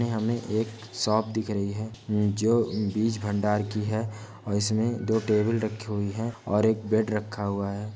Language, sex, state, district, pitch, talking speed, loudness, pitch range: Hindi, male, Bihar, Jamui, 110 Hz, 190 wpm, -27 LUFS, 105-110 Hz